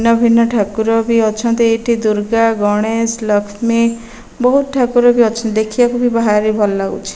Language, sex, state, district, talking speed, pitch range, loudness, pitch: Odia, female, Odisha, Malkangiri, 135 wpm, 215-235 Hz, -14 LUFS, 230 Hz